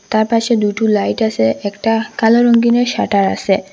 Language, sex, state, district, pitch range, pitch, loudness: Bengali, female, Assam, Hailakandi, 195-230 Hz, 215 Hz, -14 LUFS